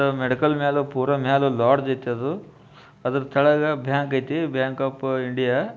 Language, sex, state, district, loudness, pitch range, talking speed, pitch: Kannada, male, Karnataka, Bijapur, -22 LUFS, 130-145 Hz, 165 wpm, 135 Hz